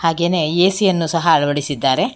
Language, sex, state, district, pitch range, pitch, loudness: Kannada, female, Karnataka, Bangalore, 150-185 Hz, 165 Hz, -16 LUFS